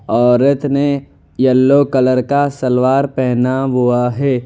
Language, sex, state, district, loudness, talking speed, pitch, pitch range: Hindi, male, Gujarat, Valsad, -14 LUFS, 120 wpm, 130 Hz, 125-140 Hz